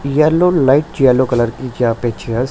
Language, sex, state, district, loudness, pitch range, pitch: Hindi, male, Punjab, Pathankot, -14 LUFS, 120-140 Hz, 130 Hz